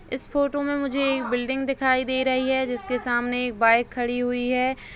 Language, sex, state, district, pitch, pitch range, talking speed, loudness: Hindi, female, Bihar, Begusarai, 255 Hz, 245-270 Hz, 205 wpm, -24 LUFS